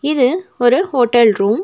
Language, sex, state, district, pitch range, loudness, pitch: Tamil, female, Tamil Nadu, Nilgiris, 235-295 Hz, -14 LUFS, 245 Hz